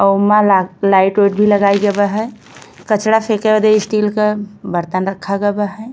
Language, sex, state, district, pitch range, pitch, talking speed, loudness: Bhojpuri, female, Uttar Pradesh, Ghazipur, 200-215 Hz, 205 Hz, 180 wpm, -14 LUFS